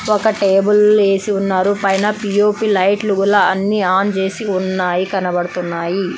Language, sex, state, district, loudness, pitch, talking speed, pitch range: Telugu, female, Andhra Pradesh, Anantapur, -15 LUFS, 195 Hz, 115 wpm, 185-205 Hz